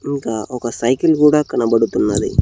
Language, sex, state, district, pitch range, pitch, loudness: Telugu, male, Telangana, Hyderabad, 115-150 Hz, 125 Hz, -16 LUFS